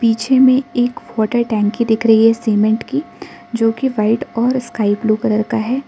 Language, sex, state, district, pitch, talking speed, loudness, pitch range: Hindi, female, Arunachal Pradesh, Lower Dibang Valley, 230 Hz, 195 wpm, -15 LUFS, 220-245 Hz